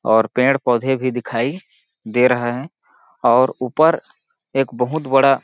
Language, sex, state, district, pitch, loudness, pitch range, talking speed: Hindi, male, Chhattisgarh, Balrampur, 130 Hz, -18 LUFS, 120-140 Hz, 145 wpm